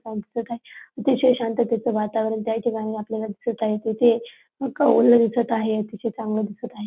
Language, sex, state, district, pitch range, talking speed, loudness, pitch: Marathi, female, Maharashtra, Dhule, 220-235 Hz, 150 wpm, -22 LUFS, 230 Hz